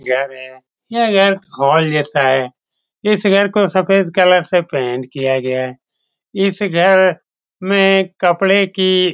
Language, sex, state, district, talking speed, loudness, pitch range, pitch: Hindi, male, Bihar, Saran, 165 wpm, -14 LUFS, 135-195 Hz, 185 Hz